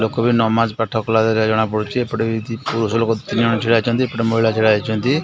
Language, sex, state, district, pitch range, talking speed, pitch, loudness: Odia, male, Odisha, Khordha, 110-115 Hz, 195 wpm, 115 Hz, -18 LUFS